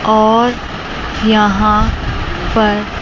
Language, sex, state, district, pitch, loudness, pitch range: Hindi, male, Chandigarh, Chandigarh, 215 Hz, -14 LUFS, 210-220 Hz